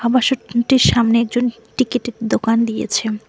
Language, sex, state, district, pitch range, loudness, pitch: Bengali, female, West Bengal, Cooch Behar, 230-245 Hz, -17 LUFS, 235 Hz